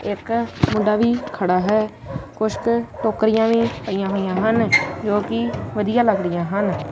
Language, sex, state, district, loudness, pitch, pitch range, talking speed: Punjabi, female, Punjab, Kapurthala, -20 LUFS, 215 Hz, 195-230 Hz, 140 wpm